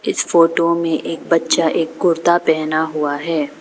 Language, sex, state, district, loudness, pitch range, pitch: Hindi, female, Arunachal Pradesh, Papum Pare, -17 LUFS, 155-170 Hz, 165 Hz